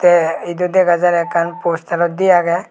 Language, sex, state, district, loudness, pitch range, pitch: Chakma, male, Tripura, West Tripura, -15 LUFS, 170-180 Hz, 175 Hz